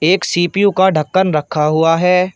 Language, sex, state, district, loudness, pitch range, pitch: Hindi, male, Uttar Pradesh, Shamli, -14 LUFS, 155-190 Hz, 180 Hz